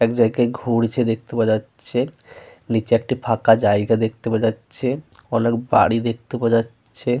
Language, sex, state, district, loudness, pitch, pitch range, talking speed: Bengali, male, Jharkhand, Sahebganj, -20 LUFS, 115 Hz, 115-120 Hz, 140 wpm